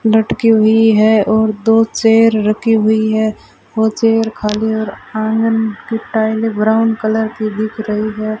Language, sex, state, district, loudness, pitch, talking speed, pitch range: Hindi, female, Rajasthan, Bikaner, -14 LUFS, 220 Hz, 155 wpm, 215-225 Hz